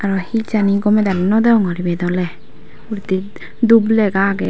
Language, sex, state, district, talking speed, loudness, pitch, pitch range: Chakma, female, Tripura, Dhalai, 175 wpm, -16 LUFS, 200 Hz, 190-220 Hz